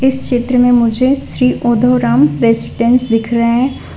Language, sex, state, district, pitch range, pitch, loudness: Hindi, female, Gujarat, Valsad, 235-255 Hz, 245 Hz, -12 LUFS